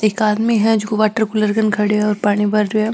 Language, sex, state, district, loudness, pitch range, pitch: Marwari, female, Rajasthan, Nagaur, -16 LUFS, 210-220 Hz, 215 Hz